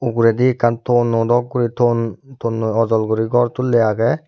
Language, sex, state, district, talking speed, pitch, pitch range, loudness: Chakma, male, Tripura, Unakoti, 170 wpm, 120 Hz, 115-120 Hz, -17 LUFS